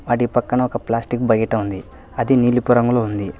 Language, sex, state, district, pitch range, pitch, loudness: Telugu, male, Telangana, Hyderabad, 110-120 Hz, 120 Hz, -18 LUFS